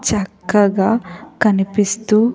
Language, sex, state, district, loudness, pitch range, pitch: Telugu, female, Andhra Pradesh, Sri Satya Sai, -16 LUFS, 195-215 Hz, 205 Hz